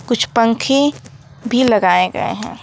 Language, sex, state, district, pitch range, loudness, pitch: Hindi, female, West Bengal, Alipurduar, 220-255 Hz, -15 LUFS, 240 Hz